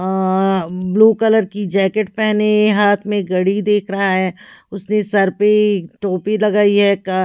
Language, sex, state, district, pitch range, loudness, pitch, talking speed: Hindi, female, Haryana, Charkhi Dadri, 190-210 Hz, -15 LUFS, 200 Hz, 150 wpm